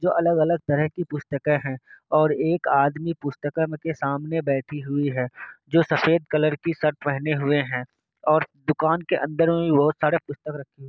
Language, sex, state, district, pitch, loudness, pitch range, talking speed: Hindi, male, Bihar, Kishanganj, 150 Hz, -23 LUFS, 145-160 Hz, 180 wpm